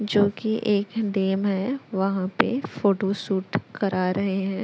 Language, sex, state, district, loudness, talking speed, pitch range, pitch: Hindi, male, Chhattisgarh, Raipur, -25 LUFS, 140 wpm, 195-210 Hz, 200 Hz